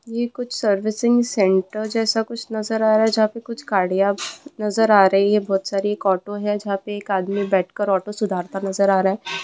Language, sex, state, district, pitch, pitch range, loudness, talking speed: Hindi, female, West Bengal, Purulia, 205 Hz, 195-220 Hz, -20 LUFS, 215 wpm